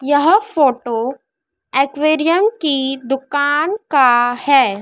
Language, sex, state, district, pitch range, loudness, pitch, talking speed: Hindi, female, Madhya Pradesh, Dhar, 260-310 Hz, -15 LUFS, 280 Hz, 85 wpm